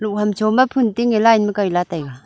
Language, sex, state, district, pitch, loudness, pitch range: Wancho, female, Arunachal Pradesh, Longding, 210 Hz, -17 LUFS, 190-230 Hz